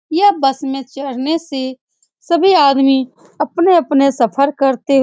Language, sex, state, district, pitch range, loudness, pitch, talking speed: Hindi, female, Bihar, Supaul, 270-325 Hz, -14 LUFS, 275 Hz, 130 wpm